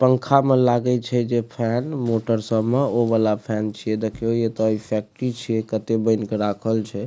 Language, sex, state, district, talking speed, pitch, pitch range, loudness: Maithili, male, Bihar, Supaul, 195 wpm, 115 Hz, 110-120 Hz, -22 LUFS